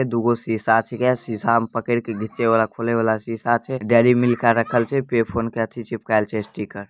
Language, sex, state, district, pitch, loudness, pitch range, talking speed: Maithili, male, Bihar, Samastipur, 115 Hz, -20 LUFS, 110-120 Hz, 215 wpm